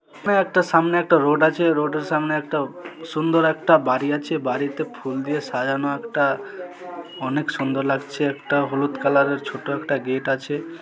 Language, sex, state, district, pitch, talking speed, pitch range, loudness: Bengali, male, West Bengal, Malda, 145 Hz, 160 wpm, 140-160 Hz, -21 LUFS